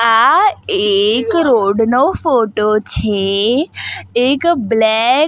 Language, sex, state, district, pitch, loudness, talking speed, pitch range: Gujarati, female, Gujarat, Gandhinagar, 235 Hz, -13 LUFS, 100 wpm, 220-315 Hz